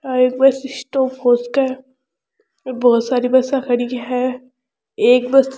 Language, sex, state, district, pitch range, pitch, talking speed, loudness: Rajasthani, female, Rajasthan, Churu, 250-270 Hz, 255 Hz, 160 wpm, -17 LUFS